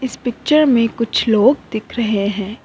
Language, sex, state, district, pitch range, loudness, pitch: Hindi, female, Assam, Kamrup Metropolitan, 215-255 Hz, -16 LUFS, 230 Hz